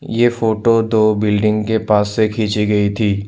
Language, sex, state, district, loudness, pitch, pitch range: Hindi, male, Assam, Sonitpur, -16 LUFS, 110 Hz, 105-110 Hz